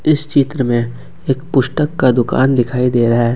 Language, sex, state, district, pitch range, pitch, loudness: Hindi, male, Jharkhand, Ranchi, 120-140 Hz, 130 Hz, -15 LUFS